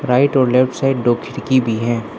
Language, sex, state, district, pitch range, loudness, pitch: Hindi, male, Arunachal Pradesh, Lower Dibang Valley, 120-135 Hz, -16 LUFS, 125 Hz